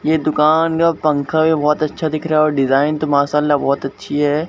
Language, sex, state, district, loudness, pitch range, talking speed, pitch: Hindi, male, Bihar, Katihar, -16 LUFS, 145-155 Hz, 200 wpm, 155 Hz